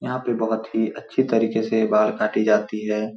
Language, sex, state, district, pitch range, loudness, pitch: Hindi, male, Bihar, Supaul, 105-115 Hz, -22 LUFS, 110 Hz